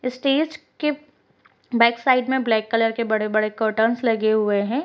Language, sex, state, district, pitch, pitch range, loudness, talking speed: Hindi, female, Bihar, Sitamarhi, 235 Hz, 220-265 Hz, -21 LUFS, 160 wpm